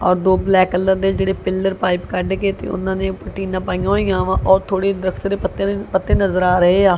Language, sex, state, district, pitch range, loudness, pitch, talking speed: Punjabi, female, Punjab, Kapurthala, 185-195 Hz, -18 LUFS, 190 Hz, 240 wpm